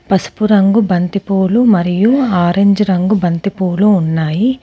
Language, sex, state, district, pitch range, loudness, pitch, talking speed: Telugu, female, Telangana, Komaram Bheem, 180-210 Hz, -13 LUFS, 195 Hz, 130 wpm